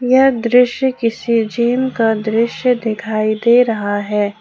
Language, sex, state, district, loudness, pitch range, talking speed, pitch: Hindi, female, Jharkhand, Ranchi, -15 LUFS, 215-250 Hz, 135 wpm, 230 Hz